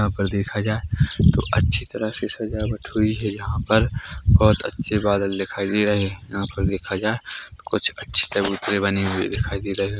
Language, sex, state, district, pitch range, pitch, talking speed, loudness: Hindi, male, Chhattisgarh, Korba, 100-110 Hz, 100 Hz, 200 wpm, -22 LUFS